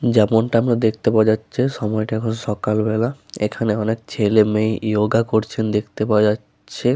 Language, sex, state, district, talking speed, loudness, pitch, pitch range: Bengali, male, West Bengal, Paschim Medinipur, 155 wpm, -19 LUFS, 110 Hz, 105-115 Hz